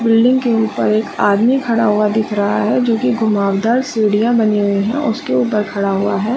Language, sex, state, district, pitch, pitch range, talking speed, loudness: Hindi, female, Jharkhand, Sahebganj, 220 Hz, 210-235 Hz, 215 wpm, -15 LUFS